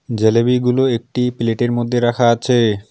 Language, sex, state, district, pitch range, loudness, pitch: Bengali, male, West Bengal, Alipurduar, 115-125 Hz, -16 LUFS, 120 Hz